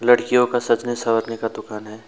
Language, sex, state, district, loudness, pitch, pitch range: Hindi, male, West Bengal, Alipurduar, -20 LUFS, 115 Hz, 115-120 Hz